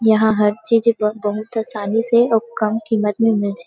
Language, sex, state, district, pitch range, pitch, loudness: Chhattisgarhi, female, Chhattisgarh, Rajnandgaon, 210-225 Hz, 220 Hz, -18 LUFS